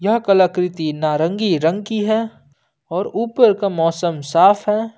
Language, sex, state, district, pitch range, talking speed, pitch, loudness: Hindi, male, Jharkhand, Ranchi, 165-215 Hz, 145 wpm, 190 Hz, -17 LUFS